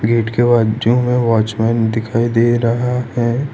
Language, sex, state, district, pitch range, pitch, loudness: Hindi, male, Gujarat, Valsad, 115-120 Hz, 115 Hz, -15 LUFS